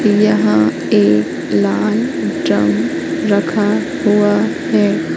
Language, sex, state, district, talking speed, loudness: Hindi, female, Madhya Pradesh, Katni, 80 wpm, -15 LUFS